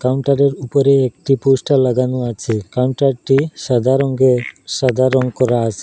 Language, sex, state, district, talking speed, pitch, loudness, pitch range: Bengali, male, Assam, Hailakandi, 135 wpm, 130 Hz, -16 LUFS, 125-135 Hz